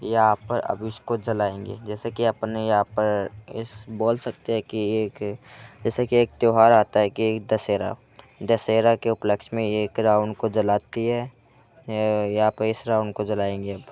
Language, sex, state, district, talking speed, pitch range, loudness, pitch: Hindi, male, Uttar Pradesh, Hamirpur, 170 wpm, 105-115 Hz, -23 LUFS, 110 Hz